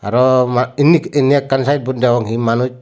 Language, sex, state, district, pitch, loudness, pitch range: Chakma, male, Tripura, Unakoti, 130 Hz, -14 LUFS, 120-140 Hz